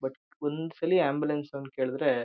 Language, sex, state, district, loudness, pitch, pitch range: Kannada, male, Karnataka, Shimoga, -30 LUFS, 145 Hz, 135-150 Hz